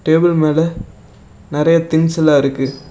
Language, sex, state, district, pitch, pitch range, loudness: Tamil, male, Tamil Nadu, Namakkal, 160 Hz, 145-165 Hz, -15 LUFS